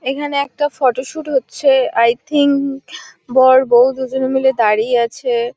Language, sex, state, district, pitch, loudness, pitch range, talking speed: Bengali, female, West Bengal, Kolkata, 265 Hz, -15 LUFS, 250-280 Hz, 130 wpm